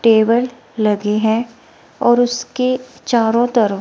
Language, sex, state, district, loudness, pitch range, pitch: Hindi, female, Himachal Pradesh, Shimla, -16 LUFS, 220-245 Hz, 235 Hz